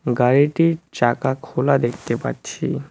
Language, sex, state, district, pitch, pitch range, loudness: Bengali, male, West Bengal, Cooch Behar, 135 Hz, 125-155 Hz, -20 LUFS